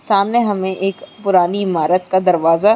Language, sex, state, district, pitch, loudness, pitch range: Hindi, female, Uttar Pradesh, Muzaffarnagar, 190 Hz, -16 LUFS, 180-200 Hz